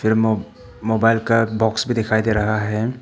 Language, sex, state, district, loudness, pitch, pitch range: Hindi, male, Arunachal Pradesh, Papum Pare, -19 LUFS, 110 Hz, 110-115 Hz